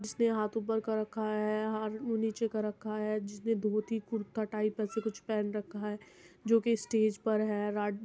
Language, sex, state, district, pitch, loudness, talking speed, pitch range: Hindi, male, Uttar Pradesh, Muzaffarnagar, 215 Hz, -33 LUFS, 200 wpm, 210-220 Hz